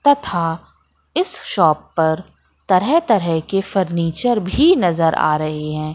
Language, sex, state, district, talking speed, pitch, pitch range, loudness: Hindi, female, Madhya Pradesh, Katni, 130 wpm, 175 Hz, 160-225 Hz, -18 LUFS